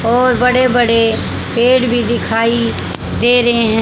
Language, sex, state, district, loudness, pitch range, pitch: Hindi, female, Haryana, Charkhi Dadri, -13 LUFS, 230-245 Hz, 240 Hz